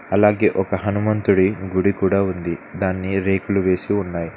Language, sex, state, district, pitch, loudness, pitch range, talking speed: Telugu, male, Telangana, Mahabubabad, 95 Hz, -20 LUFS, 95-100 Hz, 135 wpm